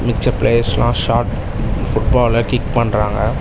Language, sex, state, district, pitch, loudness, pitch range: Tamil, male, Tamil Nadu, Chennai, 115 Hz, -16 LUFS, 110-120 Hz